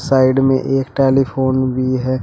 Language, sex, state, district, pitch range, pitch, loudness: Hindi, male, Uttar Pradesh, Shamli, 130-135 Hz, 130 Hz, -15 LUFS